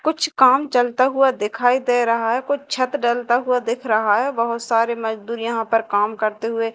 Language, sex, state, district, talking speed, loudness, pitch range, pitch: Hindi, female, Madhya Pradesh, Dhar, 205 wpm, -19 LUFS, 225-255 Hz, 235 Hz